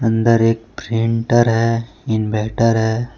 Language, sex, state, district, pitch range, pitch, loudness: Hindi, male, Jharkhand, Deoghar, 110-115 Hz, 115 Hz, -17 LUFS